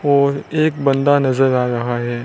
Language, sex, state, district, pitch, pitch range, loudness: Hindi, male, Rajasthan, Bikaner, 140 Hz, 125-145 Hz, -16 LUFS